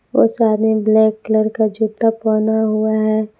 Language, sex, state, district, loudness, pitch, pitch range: Hindi, female, Jharkhand, Palamu, -16 LUFS, 220 Hz, 215-220 Hz